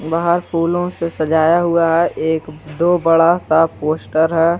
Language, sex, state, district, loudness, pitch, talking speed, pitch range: Hindi, male, Jharkhand, Garhwa, -16 LUFS, 165 Hz, 155 wpm, 160-170 Hz